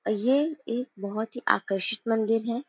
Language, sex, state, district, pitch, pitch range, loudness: Hindi, female, Uttar Pradesh, Varanasi, 230 Hz, 215-245 Hz, -25 LUFS